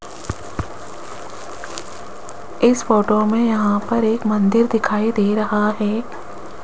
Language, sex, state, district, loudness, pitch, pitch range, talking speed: Hindi, female, Rajasthan, Jaipur, -18 LUFS, 215 Hz, 210-230 Hz, 100 wpm